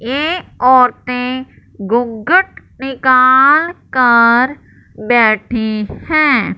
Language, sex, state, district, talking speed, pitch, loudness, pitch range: Hindi, male, Punjab, Fazilka, 65 wpm, 255 Hz, -12 LUFS, 235-270 Hz